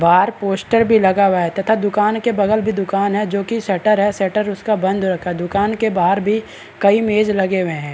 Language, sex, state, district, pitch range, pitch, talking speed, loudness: Hindi, male, Chhattisgarh, Balrampur, 190-215 Hz, 200 Hz, 225 wpm, -17 LUFS